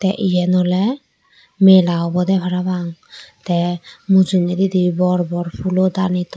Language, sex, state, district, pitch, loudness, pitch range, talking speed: Chakma, female, Tripura, Dhalai, 180 Hz, -17 LUFS, 175-190 Hz, 115 wpm